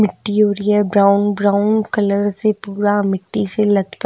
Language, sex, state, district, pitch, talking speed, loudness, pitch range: Hindi, female, Himachal Pradesh, Shimla, 205 Hz, 175 wpm, -16 LUFS, 200-210 Hz